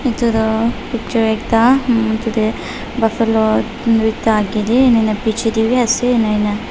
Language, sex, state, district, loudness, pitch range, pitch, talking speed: Nagamese, female, Nagaland, Dimapur, -15 LUFS, 220-235 Hz, 225 Hz, 145 wpm